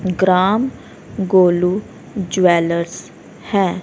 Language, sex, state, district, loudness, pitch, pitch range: Hindi, female, Haryana, Rohtak, -17 LUFS, 185 Hz, 175-195 Hz